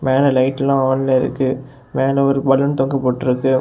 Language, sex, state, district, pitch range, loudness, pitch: Tamil, male, Tamil Nadu, Kanyakumari, 130-135 Hz, -17 LUFS, 135 Hz